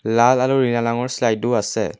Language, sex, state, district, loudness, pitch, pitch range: Assamese, male, Assam, Kamrup Metropolitan, -19 LUFS, 120 Hz, 115-130 Hz